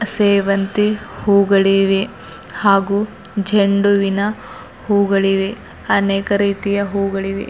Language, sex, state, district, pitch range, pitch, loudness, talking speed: Kannada, female, Karnataka, Bidar, 195-205 Hz, 200 Hz, -16 LUFS, 65 wpm